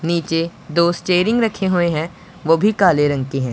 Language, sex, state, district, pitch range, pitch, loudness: Hindi, male, Punjab, Pathankot, 165-185 Hz, 170 Hz, -17 LUFS